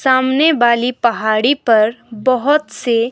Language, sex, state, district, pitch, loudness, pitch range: Hindi, female, Himachal Pradesh, Shimla, 245 Hz, -14 LUFS, 230-260 Hz